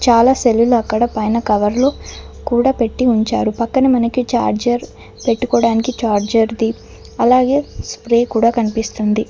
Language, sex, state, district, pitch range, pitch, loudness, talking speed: Telugu, female, Telangana, Mahabubabad, 225-245 Hz, 235 Hz, -15 LUFS, 130 wpm